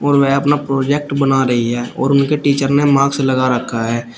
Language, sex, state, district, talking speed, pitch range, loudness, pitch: Hindi, male, Uttar Pradesh, Shamli, 215 wpm, 125-140 Hz, -15 LUFS, 140 Hz